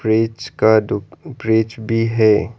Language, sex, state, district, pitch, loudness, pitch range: Hindi, male, Arunachal Pradesh, Lower Dibang Valley, 110 Hz, -17 LUFS, 110-115 Hz